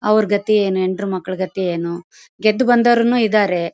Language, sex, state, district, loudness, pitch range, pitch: Kannada, female, Karnataka, Bellary, -17 LUFS, 185-215 Hz, 200 Hz